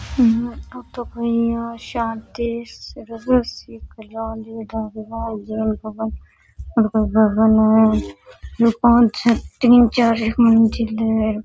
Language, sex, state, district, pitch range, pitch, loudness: Rajasthani, female, Rajasthan, Nagaur, 220-235 Hz, 225 Hz, -18 LUFS